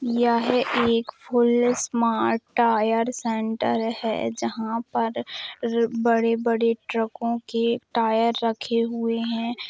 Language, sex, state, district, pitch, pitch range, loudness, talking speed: Hindi, female, Bihar, Gopalganj, 230 Hz, 230-235 Hz, -24 LUFS, 100 wpm